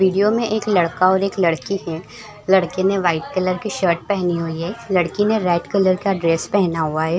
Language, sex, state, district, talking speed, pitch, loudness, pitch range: Hindi, female, Bihar, Madhepura, 215 wpm, 185 Hz, -19 LUFS, 170-200 Hz